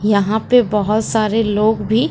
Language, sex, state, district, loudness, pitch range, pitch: Hindi, female, Uttar Pradesh, Lucknow, -16 LUFS, 210-225 Hz, 215 Hz